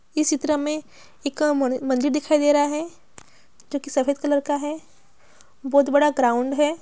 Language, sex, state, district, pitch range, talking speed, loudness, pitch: Hindi, female, Bihar, Gaya, 280-300 Hz, 165 wpm, -22 LUFS, 290 Hz